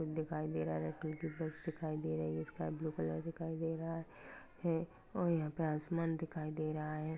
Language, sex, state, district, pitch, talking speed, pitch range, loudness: Hindi, male, Maharashtra, Pune, 155 Hz, 215 wpm, 155-165 Hz, -40 LUFS